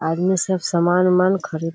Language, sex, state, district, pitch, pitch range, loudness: Hindi, female, Bihar, Kishanganj, 180 Hz, 165-190 Hz, -18 LUFS